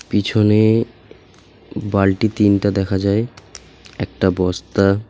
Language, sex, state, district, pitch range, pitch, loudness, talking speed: Bengali, male, West Bengal, Alipurduar, 95-105 Hz, 100 Hz, -17 LUFS, 95 wpm